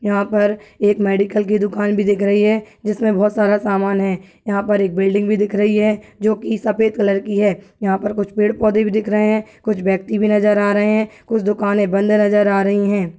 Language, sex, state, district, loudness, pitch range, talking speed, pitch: Hindi, female, Uttar Pradesh, Budaun, -17 LUFS, 200-215 Hz, 230 wpm, 205 Hz